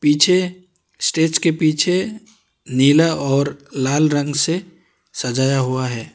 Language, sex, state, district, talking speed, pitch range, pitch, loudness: Hindi, male, Karnataka, Bangalore, 115 wpm, 135-175 Hz, 155 Hz, -18 LUFS